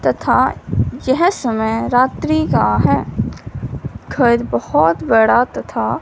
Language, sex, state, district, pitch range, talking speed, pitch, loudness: Hindi, female, Punjab, Fazilka, 220-260 Hz, 100 wpm, 240 Hz, -16 LUFS